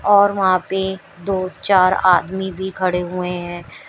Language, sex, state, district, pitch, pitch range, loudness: Hindi, female, Uttar Pradesh, Shamli, 185 Hz, 180-190 Hz, -18 LUFS